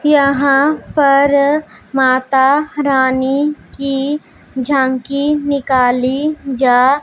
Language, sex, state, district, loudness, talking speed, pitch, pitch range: Hindi, female, Punjab, Pathankot, -14 LUFS, 70 wpm, 275 Hz, 265-290 Hz